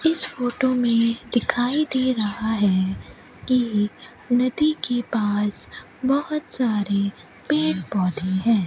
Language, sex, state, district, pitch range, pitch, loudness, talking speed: Hindi, female, Rajasthan, Bikaner, 205-255 Hz, 230 Hz, -22 LUFS, 110 wpm